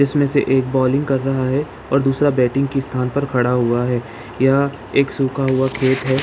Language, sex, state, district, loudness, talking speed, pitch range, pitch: Hindi, male, Bihar, Jamui, -18 LUFS, 200 wpm, 130-140 Hz, 135 Hz